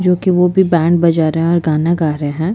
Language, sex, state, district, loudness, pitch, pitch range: Hindi, female, Chhattisgarh, Jashpur, -14 LUFS, 170 Hz, 160-180 Hz